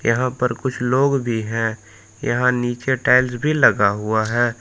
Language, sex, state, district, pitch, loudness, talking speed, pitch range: Hindi, male, Jharkhand, Palamu, 120 Hz, -19 LUFS, 170 wpm, 110-130 Hz